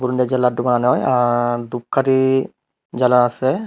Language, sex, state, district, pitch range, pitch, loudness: Bengali, male, Tripura, Unakoti, 120-130 Hz, 125 Hz, -17 LUFS